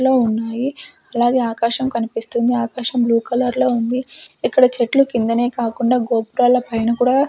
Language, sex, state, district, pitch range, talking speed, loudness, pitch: Telugu, female, Andhra Pradesh, Sri Satya Sai, 230-255 Hz, 130 wpm, -18 LUFS, 245 Hz